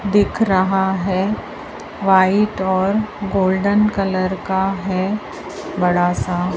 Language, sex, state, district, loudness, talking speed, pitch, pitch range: Hindi, male, Madhya Pradesh, Dhar, -18 LUFS, 90 wpm, 190 Hz, 185-200 Hz